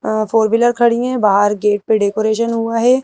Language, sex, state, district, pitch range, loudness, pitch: Hindi, female, Madhya Pradesh, Bhopal, 215-235 Hz, -15 LUFS, 225 Hz